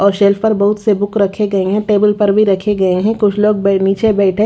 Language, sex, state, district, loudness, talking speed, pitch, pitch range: Hindi, female, Haryana, Rohtak, -13 LUFS, 255 wpm, 205 Hz, 200-210 Hz